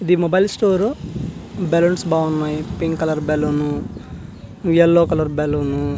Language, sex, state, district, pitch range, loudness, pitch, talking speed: Telugu, male, Andhra Pradesh, Manyam, 150-175 Hz, -18 LUFS, 165 Hz, 120 wpm